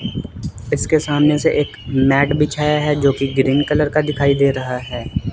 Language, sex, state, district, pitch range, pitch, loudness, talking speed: Hindi, male, Chandigarh, Chandigarh, 135-150 Hz, 140 Hz, -17 LUFS, 180 wpm